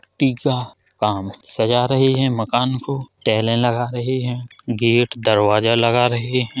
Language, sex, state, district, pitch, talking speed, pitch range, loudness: Hindi, male, Uttar Pradesh, Jalaun, 120 Hz, 155 wpm, 115-130 Hz, -19 LUFS